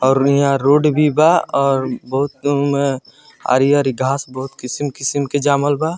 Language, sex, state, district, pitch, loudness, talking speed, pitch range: Bhojpuri, male, Bihar, Muzaffarpur, 140 Hz, -16 LUFS, 150 wpm, 135-145 Hz